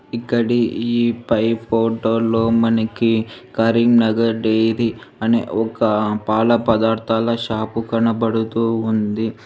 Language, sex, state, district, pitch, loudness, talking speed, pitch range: Telugu, female, Telangana, Hyderabad, 115 Hz, -18 LUFS, 90 wpm, 110-115 Hz